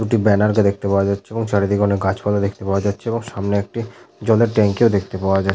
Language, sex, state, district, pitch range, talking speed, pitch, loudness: Bengali, male, West Bengal, Jhargram, 100-110 Hz, 240 wpm, 100 Hz, -18 LUFS